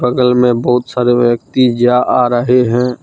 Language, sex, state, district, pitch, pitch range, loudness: Hindi, male, Jharkhand, Deoghar, 125 Hz, 120-125 Hz, -12 LUFS